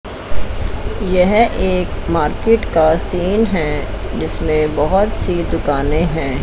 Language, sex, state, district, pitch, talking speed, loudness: Hindi, female, Chandigarh, Chandigarh, 150 Hz, 105 wpm, -17 LUFS